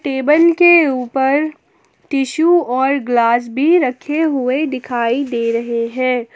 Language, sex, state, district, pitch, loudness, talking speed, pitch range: Hindi, female, Jharkhand, Palamu, 265 Hz, -15 LUFS, 120 wpm, 245-310 Hz